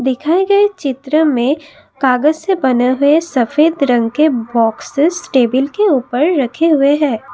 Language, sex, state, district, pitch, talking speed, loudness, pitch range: Hindi, female, Assam, Kamrup Metropolitan, 285 Hz, 145 wpm, -14 LUFS, 255-315 Hz